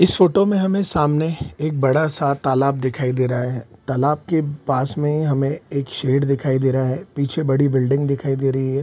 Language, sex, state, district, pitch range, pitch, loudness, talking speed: Hindi, male, Bihar, Araria, 130-150 Hz, 140 Hz, -20 LUFS, 210 wpm